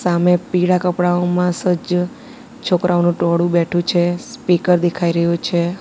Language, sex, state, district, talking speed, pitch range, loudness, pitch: Gujarati, female, Gujarat, Valsad, 125 wpm, 175-180 Hz, -17 LUFS, 175 Hz